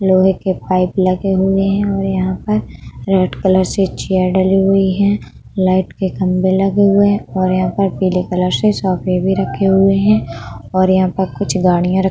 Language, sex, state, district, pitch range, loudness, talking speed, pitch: Hindi, female, Uttar Pradesh, Budaun, 185-195 Hz, -15 LUFS, 195 wpm, 190 Hz